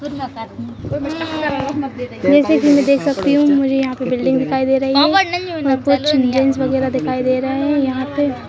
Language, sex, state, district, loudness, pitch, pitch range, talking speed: Hindi, female, Madhya Pradesh, Bhopal, -16 LUFS, 270 Hz, 260-290 Hz, 170 wpm